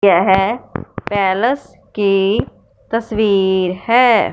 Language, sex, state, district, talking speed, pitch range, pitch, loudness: Hindi, male, Punjab, Fazilka, 70 wpm, 190-230 Hz, 205 Hz, -15 LUFS